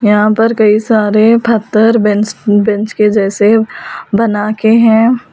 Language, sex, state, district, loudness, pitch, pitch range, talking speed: Hindi, female, Delhi, New Delhi, -10 LUFS, 215 Hz, 210-225 Hz, 135 wpm